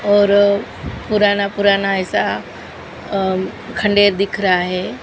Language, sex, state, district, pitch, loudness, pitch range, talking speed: Hindi, female, Maharashtra, Mumbai Suburban, 200 Hz, -16 LUFS, 195-205 Hz, 110 wpm